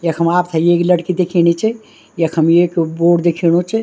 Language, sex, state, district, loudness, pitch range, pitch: Garhwali, female, Uttarakhand, Tehri Garhwal, -14 LUFS, 170-180 Hz, 170 Hz